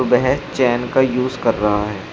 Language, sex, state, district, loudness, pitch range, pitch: Hindi, male, Uttar Pradesh, Shamli, -18 LUFS, 105-130 Hz, 125 Hz